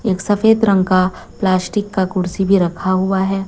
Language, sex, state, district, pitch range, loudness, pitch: Hindi, female, Chhattisgarh, Raipur, 185-200 Hz, -16 LUFS, 190 Hz